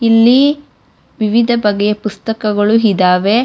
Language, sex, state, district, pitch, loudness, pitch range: Kannada, female, Karnataka, Bangalore, 215 Hz, -13 LUFS, 210-235 Hz